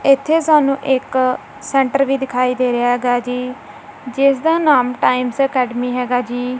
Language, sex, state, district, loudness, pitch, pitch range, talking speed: Punjabi, female, Punjab, Kapurthala, -16 LUFS, 255 Hz, 250-275 Hz, 155 wpm